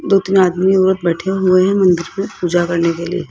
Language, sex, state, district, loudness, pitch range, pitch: Hindi, male, Rajasthan, Jaipur, -15 LUFS, 175-190 Hz, 185 Hz